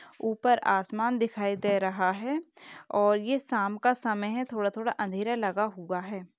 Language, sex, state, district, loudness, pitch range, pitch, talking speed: Hindi, female, Uttar Pradesh, Etah, -29 LUFS, 200-240 Hz, 215 Hz, 170 wpm